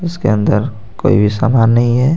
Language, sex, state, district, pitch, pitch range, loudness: Hindi, male, Jharkhand, Garhwa, 115 Hz, 105-125 Hz, -13 LUFS